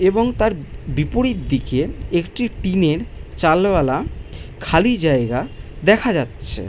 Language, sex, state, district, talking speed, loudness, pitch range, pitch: Bengali, male, West Bengal, Malda, 115 wpm, -19 LUFS, 140-215 Hz, 170 Hz